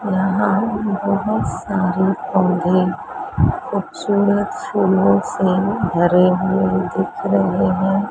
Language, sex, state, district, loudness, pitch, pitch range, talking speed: Hindi, male, Maharashtra, Mumbai Suburban, -18 LUFS, 190 Hz, 180-200 Hz, 90 wpm